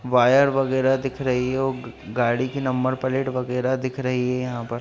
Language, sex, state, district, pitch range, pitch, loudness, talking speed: Hindi, male, Bihar, Lakhisarai, 125-130 Hz, 130 Hz, -22 LUFS, 185 wpm